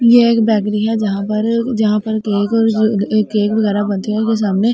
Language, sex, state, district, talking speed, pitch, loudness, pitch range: Hindi, female, Delhi, New Delhi, 200 wpm, 215 Hz, -15 LUFS, 210-225 Hz